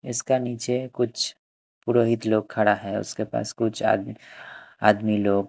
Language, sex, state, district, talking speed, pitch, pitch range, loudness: Hindi, male, Chandigarh, Chandigarh, 165 wpm, 115 Hz, 105-120 Hz, -24 LUFS